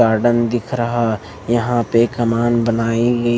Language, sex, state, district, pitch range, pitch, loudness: Hindi, male, Maharashtra, Mumbai Suburban, 115-120 Hz, 120 Hz, -17 LUFS